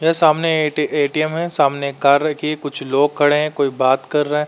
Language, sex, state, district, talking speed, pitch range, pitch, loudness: Hindi, male, Uttar Pradesh, Varanasi, 255 wpm, 140-155 Hz, 150 Hz, -17 LUFS